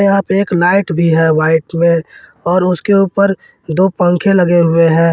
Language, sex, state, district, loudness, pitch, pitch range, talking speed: Hindi, male, Jharkhand, Ranchi, -12 LUFS, 175 Hz, 165-195 Hz, 185 wpm